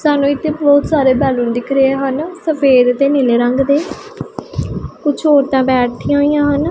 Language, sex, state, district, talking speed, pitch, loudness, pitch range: Punjabi, female, Punjab, Pathankot, 160 wpm, 280 Hz, -14 LUFS, 265-290 Hz